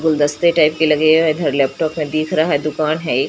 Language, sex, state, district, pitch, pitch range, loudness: Hindi, female, Bihar, Katihar, 155 Hz, 150-160 Hz, -16 LUFS